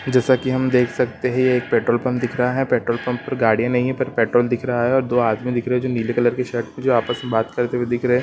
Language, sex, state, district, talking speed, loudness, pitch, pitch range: Hindi, male, Chhattisgarh, Kabirdham, 330 wpm, -20 LUFS, 125 Hz, 120-125 Hz